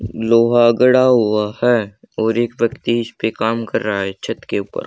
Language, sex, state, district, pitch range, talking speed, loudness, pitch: Hindi, male, Haryana, Charkhi Dadri, 110-120 Hz, 195 wpm, -16 LUFS, 115 Hz